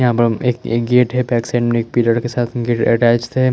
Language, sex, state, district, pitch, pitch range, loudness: Hindi, male, Chandigarh, Chandigarh, 120 Hz, 115-125 Hz, -16 LUFS